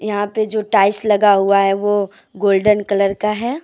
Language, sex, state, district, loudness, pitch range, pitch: Hindi, female, Jharkhand, Deoghar, -16 LUFS, 200-210 Hz, 205 Hz